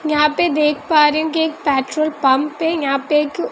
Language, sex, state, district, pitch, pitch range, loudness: Hindi, female, Bihar, West Champaran, 300 Hz, 295-315 Hz, -17 LUFS